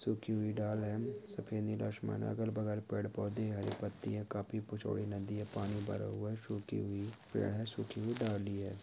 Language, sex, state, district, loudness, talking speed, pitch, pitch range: Hindi, male, Chhattisgarh, Jashpur, -40 LUFS, 225 wpm, 105 Hz, 105-110 Hz